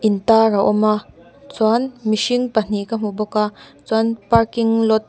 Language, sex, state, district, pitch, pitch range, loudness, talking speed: Mizo, female, Mizoram, Aizawl, 220 Hz, 215-225 Hz, -18 LUFS, 190 wpm